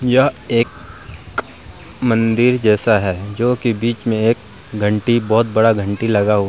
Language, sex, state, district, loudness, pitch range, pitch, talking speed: Hindi, male, Bihar, Vaishali, -17 LUFS, 105-115 Hz, 110 Hz, 150 wpm